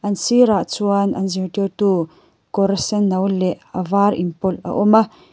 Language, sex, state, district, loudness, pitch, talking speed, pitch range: Mizo, female, Mizoram, Aizawl, -18 LUFS, 200 Hz, 155 wpm, 185-205 Hz